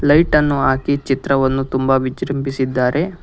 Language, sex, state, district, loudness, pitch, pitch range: Kannada, male, Karnataka, Bangalore, -17 LUFS, 135 Hz, 130-145 Hz